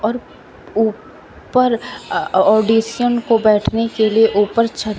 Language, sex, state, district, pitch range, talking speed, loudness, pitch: Hindi, female, Uttar Pradesh, Shamli, 215-235 Hz, 120 wpm, -16 LUFS, 225 Hz